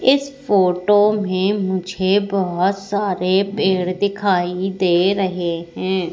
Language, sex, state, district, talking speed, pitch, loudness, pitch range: Hindi, female, Madhya Pradesh, Katni, 110 wpm, 190 Hz, -18 LUFS, 185-200 Hz